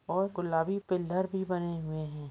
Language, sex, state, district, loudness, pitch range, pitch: Hindi, male, Jharkhand, Jamtara, -33 LUFS, 160-190 Hz, 175 Hz